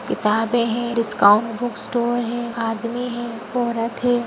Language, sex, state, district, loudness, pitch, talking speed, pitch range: Hindi, female, Uttar Pradesh, Gorakhpur, -21 LUFS, 235 Hz, 140 wpm, 230-240 Hz